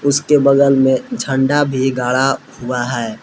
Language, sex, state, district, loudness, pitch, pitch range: Hindi, male, Jharkhand, Palamu, -15 LUFS, 135 Hz, 125-140 Hz